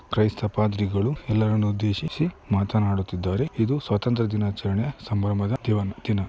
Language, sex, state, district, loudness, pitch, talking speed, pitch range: Kannada, male, Karnataka, Mysore, -25 LUFS, 105 Hz, 105 wpm, 100-115 Hz